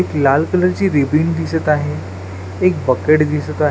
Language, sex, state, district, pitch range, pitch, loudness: Marathi, male, Maharashtra, Washim, 135-160 Hz, 150 Hz, -16 LUFS